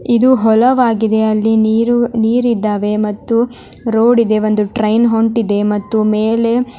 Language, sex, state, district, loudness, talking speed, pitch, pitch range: Kannada, male, Karnataka, Dharwad, -13 LUFS, 105 wpm, 225 Hz, 215-235 Hz